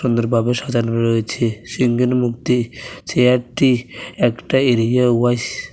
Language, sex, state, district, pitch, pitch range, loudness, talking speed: Bengali, male, Tripura, West Tripura, 120 Hz, 115-125 Hz, -18 LUFS, 105 wpm